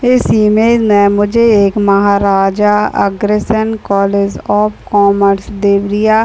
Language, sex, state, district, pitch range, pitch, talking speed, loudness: Hindi, female, Uttar Pradesh, Deoria, 200-215 Hz, 205 Hz, 115 wpm, -11 LUFS